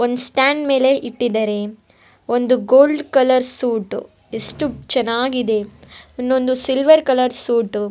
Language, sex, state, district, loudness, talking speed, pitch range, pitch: Kannada, female, Karnataka, Bellary, -17 LUFS, 115 wpm, 235-265 Hz, 255 Hz